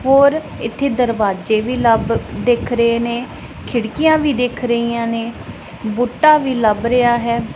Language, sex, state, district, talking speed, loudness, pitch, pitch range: Punjabi, female, Punjab, Pathankot, 145 wpm, -16 LUFS, 235 Hz, 230-255 Hz